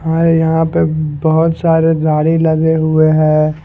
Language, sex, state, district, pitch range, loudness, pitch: Hindi, male, Punjab, Fazilka, 155-165 Hz, -12 LUFS, 160 Hz